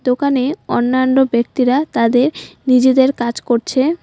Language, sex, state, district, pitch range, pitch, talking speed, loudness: Bengali, female, West Bengal, Alipurduar, 245-270 Hz, 260 Hz, 105 wpm, -15 LUFS